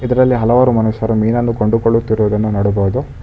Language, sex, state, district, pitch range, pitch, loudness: Kannada, male, Karnataka, Bangalore, 110-120 Hz, 115 Hz, -14 LUFS